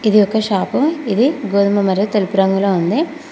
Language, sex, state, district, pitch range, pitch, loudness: Telugu, female, Telangana, Mahabubabad, 195-260 Hz, 205 Hz, -16 LUFS